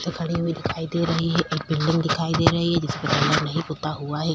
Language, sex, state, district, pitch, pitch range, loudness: Hindi, female, Chhattisgarh, Korba, 160 Hz, 155-165 Hz, -23 LUFS